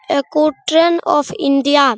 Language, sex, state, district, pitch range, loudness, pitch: Hindi, male, Bihar, Araria, 280-315 Hz, -15 LUFS, 295 Hz